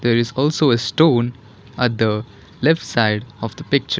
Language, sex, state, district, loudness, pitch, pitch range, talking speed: English, female, Karnataka, Bangalore, -19 LUFS, 120 Hz, 110-140 Hz, 180 wpm